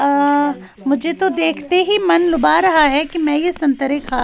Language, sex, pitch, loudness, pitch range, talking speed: Urdu, female, 300 Hz, -15 LUFS, 285-340 Hz, 200 wpm